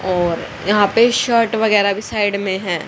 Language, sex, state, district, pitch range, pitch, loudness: Hindi, female, Haryana, Rohtak, 190-220 Hz, 205 Hz, -16 LUFS